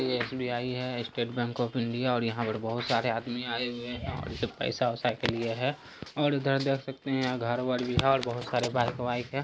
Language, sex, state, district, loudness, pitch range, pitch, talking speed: Hindi, male, Bihar, Araria, -30 LUFS, 120-130 Hz, 120 Hz, 235 wpm